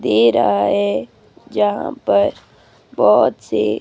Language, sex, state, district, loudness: Hindi, female, Himachal Pradesh, Shimla, -16 LUFS